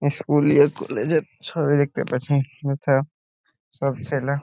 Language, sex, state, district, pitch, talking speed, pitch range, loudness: Bengali, male, West Bengal, Purulia, 145 Hz, 150 wpm, 140-150 Hz, -21 LUFS